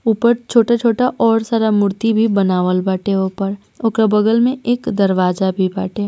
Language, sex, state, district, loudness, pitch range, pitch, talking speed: Hindi, female, Bihar, East Champaran, -16 LUFS, 190-230 Hz, 220 Hz, 170 wpm